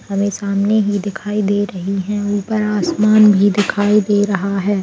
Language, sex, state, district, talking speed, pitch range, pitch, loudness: Hindi, female, Bihar, Saharsa, 175 wpm, 200-210 Hz, 205 Hz, -16 LUFS